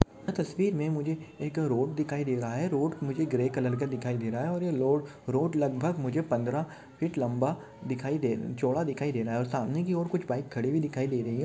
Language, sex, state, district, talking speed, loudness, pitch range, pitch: Hindi, male, Maharashtra, Nagpur, 220 wpm, -30 LUFS, 130-160 Hz, 140 Hz